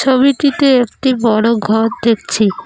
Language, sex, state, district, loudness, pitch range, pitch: Bengali, female, West Bengal, Cooch Behar, -13 LUFS, 220-265 Hz, 235 Hz